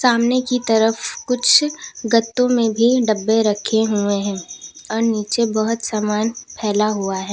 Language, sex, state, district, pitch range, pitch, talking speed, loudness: Hindi, female, Uttar Pradesh, Lalitpur, 210-240 Hz, 225 Hz, 145 wpm, -18 LUFS